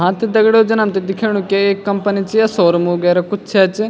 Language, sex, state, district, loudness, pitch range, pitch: Garhwali, male, Uttarakhand, Tehri Garhwal, -14 LUFS, 190-220 Hz, 200 Hz